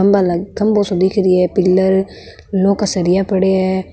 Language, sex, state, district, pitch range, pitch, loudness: Marwari, female, Rajasthan, Nagaur, 185-200 Hz, 190 Hz, -15 LUFS